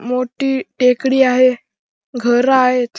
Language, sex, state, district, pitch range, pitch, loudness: Marathi, male, Maharashtra, Chandrapur, 250-265 Hz, 255 Hz, -15 LUFS